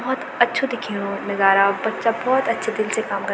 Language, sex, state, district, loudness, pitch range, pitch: Garhwali, female, Uttarakhand, Tehri Garhwal, -20 LUFS, 200-240 Hz, 220 Hz